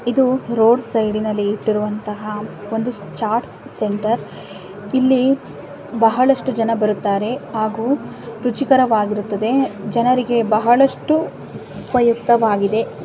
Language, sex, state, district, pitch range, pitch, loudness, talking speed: Kannada, female, Karnataka, Dharwad, 210-250 Hz, 225 Hz, -18 LUFS, 80 wpm